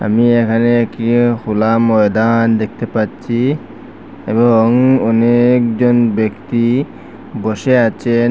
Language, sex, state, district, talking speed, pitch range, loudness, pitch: Bengali, male, Assam, Hailakandi, 85 wpm, 110-120 Hz, -13 LUFS, 115 Hz